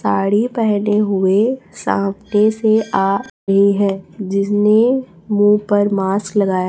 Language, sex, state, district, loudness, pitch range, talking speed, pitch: Hindi, female, Chhattisgarh, Raipur, -16 LUFS, 195-215 Hz, 115 wpm, 205 Hz